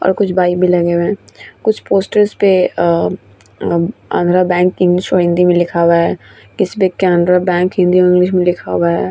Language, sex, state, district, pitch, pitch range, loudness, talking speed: Hindi, female, Bihar, Vaishali, 180 Hz, 175-185 Hz, -13 LUFS, 210 wpm